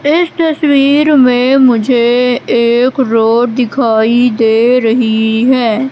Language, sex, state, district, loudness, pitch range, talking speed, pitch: Hindi, female, Madhya Pradesh, Katni, -10 LUFS, 230-270 Hz, 100 wpm, 245 Hz